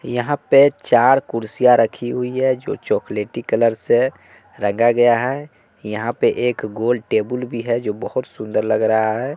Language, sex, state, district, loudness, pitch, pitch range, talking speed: Hindi, male, Bihar, West Champaran, -18 LUFS, 120 Hz, 110-125 Hz, 175 wpm